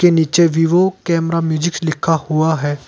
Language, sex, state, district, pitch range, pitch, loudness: Hindi, male, Uttar Pradesh, Saharanpur, 160-170 Hz, 165 Hz, -16 LUFS